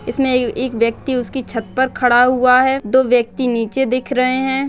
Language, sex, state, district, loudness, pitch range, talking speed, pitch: Hindi, female, Bihar, Bhagalpur, -16 LUFS, 245-260 Hz, 205 wpm, 255 Hz